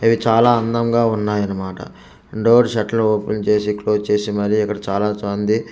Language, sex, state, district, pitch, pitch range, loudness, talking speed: Telugu, male, Andhra Pradesh, Manyam, 105 Hz, 105-115 Hz, -18 LUFS, 155 wpm